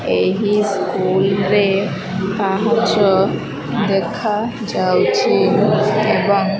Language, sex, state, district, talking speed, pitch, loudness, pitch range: Odia, female, Odisha, Malkangiri, 75 wpm, 200 Hz, -16 LUFS, 195-210 Hz